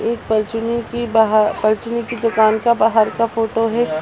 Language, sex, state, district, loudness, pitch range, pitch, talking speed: Hindi, female, Chhattisgarh, Raigarh, -17 LUFS, 220-235 Hz, 225 Hz, 120 wpm